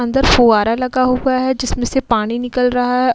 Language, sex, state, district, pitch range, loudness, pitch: Hindi, female, Uttar Pradesh, Muzaffarnagar, 240-255 Hz, -15 LUFS, 250 Hz